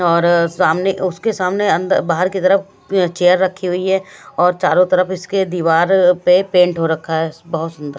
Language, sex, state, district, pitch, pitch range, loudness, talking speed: Hindi, female, Odisha, Malkangiri, 180 Hz, 170-190 Hz, -15 LUFS, 180 wpm